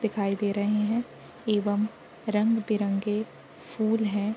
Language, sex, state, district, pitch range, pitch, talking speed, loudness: Hindi, female, Uttar Pradesh, Deoria, 205-220 Hz, 210 Hz, 110 wpm, -28 LUFS